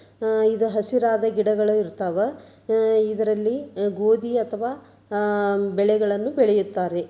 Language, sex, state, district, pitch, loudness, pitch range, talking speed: Kannada, female, Karnataka, Dharwad, 215 Hz, -22 LUFS, 205-225 Hz, 100 wpm